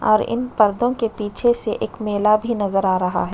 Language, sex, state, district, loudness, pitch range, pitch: Hindi, female, Uttar Pradesh, Budaun, -19 LUFS, 205-235 Hz, 215 Hz